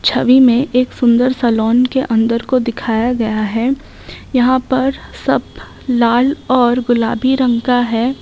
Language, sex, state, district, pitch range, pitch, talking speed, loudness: Hindi, female, Bihar, Bhagalpur, 235-255 Hz, 245 Hz, 155 wpm, -14 LUFS